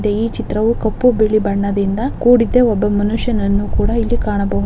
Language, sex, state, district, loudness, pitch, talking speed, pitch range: Kannada, male, Karnataka, Shimoga, -16 LUFS, 215 Hz, 140 wpm, 205-235 Hz